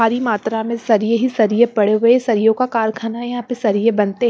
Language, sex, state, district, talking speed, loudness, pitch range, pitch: Hindi, female, Punjab, Pathankot, 235 wpm, -17 LUFS, 220-240 Hz, 225 Hz